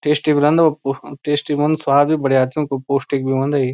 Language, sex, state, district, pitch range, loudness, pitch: Garhwali, male, Uttarakhand, Uttarkashi, 135-150 Hz, -17 LUFS, 145 Hz